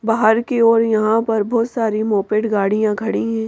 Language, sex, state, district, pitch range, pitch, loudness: Hindi, female, Madhya Pradesh, Bhopal, 215-230 Hz, 220 Hz, -17 LUFS